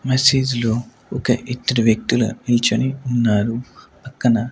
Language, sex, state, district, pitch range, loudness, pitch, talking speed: Telugu, male, Andhra Pradesh, Manyam, 115-125 Hz, -19 LUFS, 120 Hz, 105 wpm